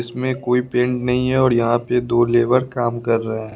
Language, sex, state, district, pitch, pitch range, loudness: Hindi, male, Bihar, West Champaran, 125 Hz, 120-125 Hz, -18 LUFS